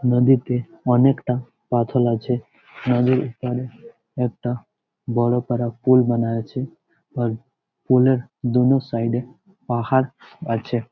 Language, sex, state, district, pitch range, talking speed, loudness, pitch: Bengali, male, West Bengal, Jalpaiguri, 120-130 Hz, 115 wpm, -21 LUFS, 125 Hz